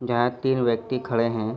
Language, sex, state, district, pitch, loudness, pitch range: Hindi, male, Uttar Pradesh, Varanasi, 120 Hz, -24 LUFS, 115-125 Hz